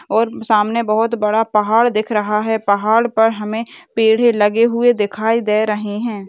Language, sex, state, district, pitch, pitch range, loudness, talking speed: Hindi, female, Rajasthan, Nagaur, 220 Hz, 210-230 Hz, -16 LUFS, 170 wpm